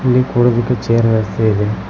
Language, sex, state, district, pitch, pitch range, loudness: Kannada, male, Karnataka, Koppal, 115 Hz, 110-120 Hz, -15 LUFS